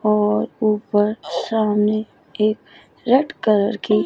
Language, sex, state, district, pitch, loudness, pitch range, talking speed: Hindi, female, Chandigarh, Chandigarh, 215 Hz, -19 LUFS, 210-220 Hz, 105 wpm